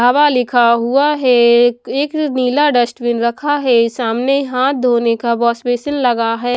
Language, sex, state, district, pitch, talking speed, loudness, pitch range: Hindi, female, Punjab, Pathankot, 245 Hz, 155 wpm, -14 LUFS, 235-275 Hz